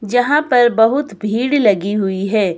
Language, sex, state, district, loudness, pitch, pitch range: Hindi, male, Himachal Pradesh, Shimla, -15 LUFS, 225 Hz, 205-245 Hz